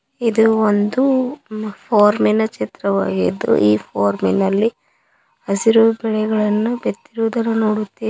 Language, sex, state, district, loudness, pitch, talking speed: Kannada, female, Karnataka, Koppal, -17 LUFS, 215 Hz, 65 wpm